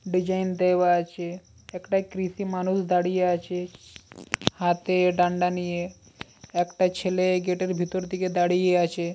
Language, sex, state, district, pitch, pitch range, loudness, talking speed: Bengali, female, West Bengal, Paschim Medinipur, 180 Hz, 175-185 Hz, -25 LUFS, 135 wpm